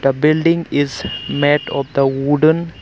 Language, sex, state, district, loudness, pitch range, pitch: English, male, Arunachal Pradesh, Longding, -16 LUFS, 140-155 Hz, 145 Hz